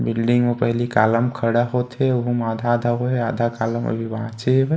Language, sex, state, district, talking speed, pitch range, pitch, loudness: Chhattisgarhi, male, Chhattisgarh, Kabirdham, 200 wpm, 115-125 Hz, 120 Hz, -20 LUFS